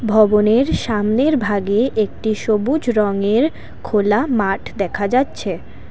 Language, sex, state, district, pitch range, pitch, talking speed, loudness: Bengali, female, Assam, Kamrup Metropolitan, 210-245 Hz, 215 Hz, 100 wpm, -17 LUFS